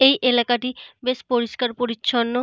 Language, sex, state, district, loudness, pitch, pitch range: Bengali, female, Jharkhand, Jamtara, -22 LUFS, 245 Hz, 240-255 Hz